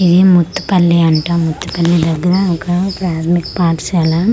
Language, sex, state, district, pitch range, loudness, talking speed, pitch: Telugu, female, Andhra Pradesh, Manyam, 165-185 Hz, -13 LUFS, 150 wpm, 175 Hz